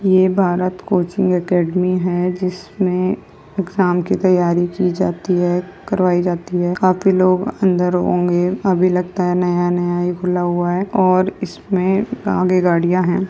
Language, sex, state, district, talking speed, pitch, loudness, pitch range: Hindi, female, Uttar Pradesh, Jyotiba Phule Nagar, 145 wpm, 180 Hz, -17 LUFS, 180-185 Hz